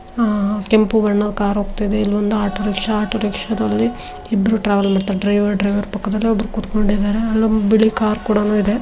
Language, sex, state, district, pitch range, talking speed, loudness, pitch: Kannada, female, Karnataka, Dharwad, 205-220 Hz, 150 wpm, -17 LUFS, 210 Hz